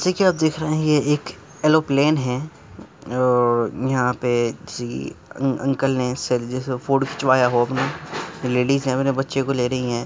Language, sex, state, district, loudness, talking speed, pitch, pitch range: Hindi, male, Uttar Pradesh, Muzaffarnagar, -21 LUFS, 180 wpm, 130 Hz, 125-140 Hz